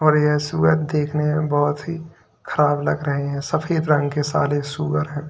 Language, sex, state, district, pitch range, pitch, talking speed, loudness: Hindi, male, Uttar Pradesh, Lalitpur, 145-155 Hz, 150 Hz, 190 wpm, -21 LUFS